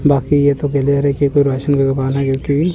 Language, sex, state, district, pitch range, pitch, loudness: Hindi, male, Chandigarh, Chandigarh, 135-145 Hz, 140 Hz, -15 LUFS